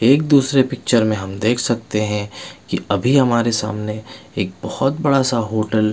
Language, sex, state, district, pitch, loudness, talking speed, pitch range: Hindi, male, Bihar, Patna, 115 Hz, -18 LUFS, 180 wpm, 105-130 Hz